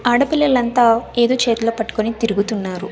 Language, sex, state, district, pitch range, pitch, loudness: Telugu, female, Andhra Pradesh, Sri Satya Sai, 220-245 Hz, 230 Hz, -17 LUFS